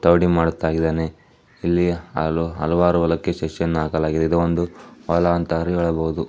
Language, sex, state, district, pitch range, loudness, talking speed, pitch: Kannada, male, Karnataka, Chamarajanagar, 80-85 Hz, -21 LUFS, 105 wpm, 85 Hz